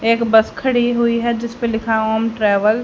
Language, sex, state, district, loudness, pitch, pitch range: Hindi, female, Haryana, Charkhi Dadri, -17 LUFS, 230 Hz, 220-235 Hz